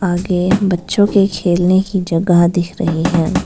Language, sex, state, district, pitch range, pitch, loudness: Hindi, female, Arunachal Pradesh, Lower Dibang Valley, 175-195 Hz, 180 Hz, -14 LUFS